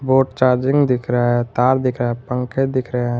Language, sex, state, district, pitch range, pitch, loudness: Hindi, male, Jharkhand, Garhwa, 120-130 Hz, 125 Hz, -18 LUFS